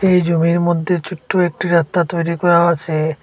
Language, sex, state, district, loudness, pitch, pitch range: Bengali, male, Assam, Hailakandi, -16 LUFS, 170 Hz, 165-175 Hz